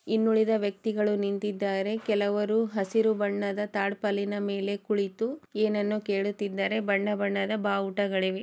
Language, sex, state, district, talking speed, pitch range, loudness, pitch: Kannada, female, Karnataka, Chamarajanagar, 100 wpm, 200-215 Hz, -28 LUFS, 205 Hz